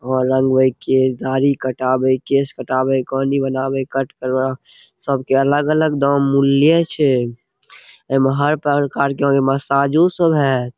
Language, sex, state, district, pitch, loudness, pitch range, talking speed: Maithili, male, Bihar, Saharsa, 135 Hz, -17 LUFS, 130-140 Hz, 130 wpm